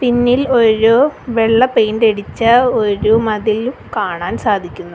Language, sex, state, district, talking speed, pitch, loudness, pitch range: Malayalam, female, Kerala, Kollam, 110 wpm, 225 Hz, -14 LUFS, 215-245 Hz